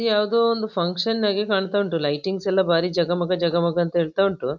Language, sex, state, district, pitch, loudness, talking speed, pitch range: Kannada, female, Karnataka, Dakshina Kannada, 190 Hz, -22 LUFS, 170 wpm, 170-205 Hz